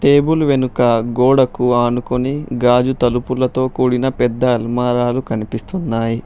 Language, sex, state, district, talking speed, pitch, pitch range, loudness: Telugu, male, Telangana, Hyderabad, 95 wpm, 125 Hz, 120-130 Hz, -16 LUFS